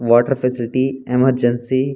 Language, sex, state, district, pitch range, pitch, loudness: Telugu, male, Andhra Pradesh, Anantapur, 120-130 Hz, 125 Hz, -17 LUFS